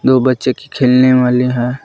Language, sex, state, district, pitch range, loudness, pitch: Hindi, male, Jharkhand, Palamu, 125-130 Hz, -12 LUFS, 130 Hz